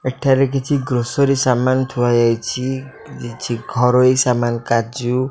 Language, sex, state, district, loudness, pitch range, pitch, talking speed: Odia, male, Odisha, Khordha, -17 LUFS, 120-130 Hz, 125 Hz, 125 wpm